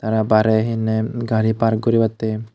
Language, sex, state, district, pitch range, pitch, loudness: Chakma, male, Tripura, Unakoti, 110-115 Hz, 110 Hz, -18 LUFS